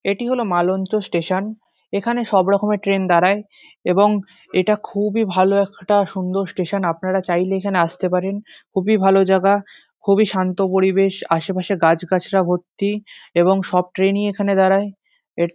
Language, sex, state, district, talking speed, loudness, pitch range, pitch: Bengali, male, West Bengal, Dakshin Dinajpur, 145 wpm, -18 LUFS, 185-205 Hz, 195 Hz